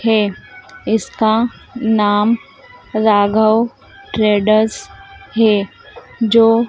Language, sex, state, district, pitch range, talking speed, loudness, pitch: Hindi, female, Madhya Pradesh, Dhar, 215-235 Hz, 65 wpm, -15 LUFS, 220 Hz